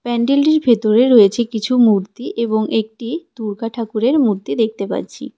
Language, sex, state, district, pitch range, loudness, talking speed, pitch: Bengali, female, West Bengal, Cooch Behar, 220-250 Hz, -16 LUFS, 135 wpm, 230 Hz